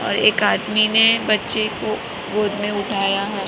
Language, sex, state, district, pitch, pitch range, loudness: Hindi, female, Maharashtra, Mumbai Suburban, 210 Hz, 200-215 Hz, -18 LUFS